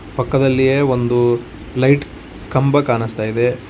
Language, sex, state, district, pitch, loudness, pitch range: Kannada, male, Karnataka, Koppal, 125 Hz, -16 LUFS, 120-135 Hz